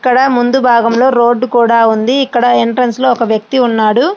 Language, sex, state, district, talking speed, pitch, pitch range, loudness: Telugu, female, Andhra Pradesh, Srikakulam, 160 wpm, 245 Hz, 230-255 Hz, -11 LUFS